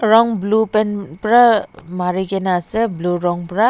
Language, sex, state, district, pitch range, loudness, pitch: Nagamese, female, Nagaland, Dimapur, 180-220 Hz, -17 LUFS, 205 Hz